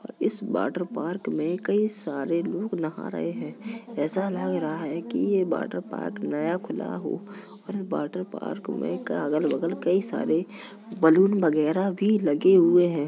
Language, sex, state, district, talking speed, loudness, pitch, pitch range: Hindi, female, Uttar Pradesh, Jalaun, 155 wpm, -26 LUFS, 185 Hz, 165-205 Hz